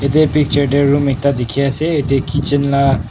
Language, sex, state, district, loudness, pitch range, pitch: Nagamese, male, Nagaland, Kohima, -15 LUFS, 140-145 Hz, 140 Hz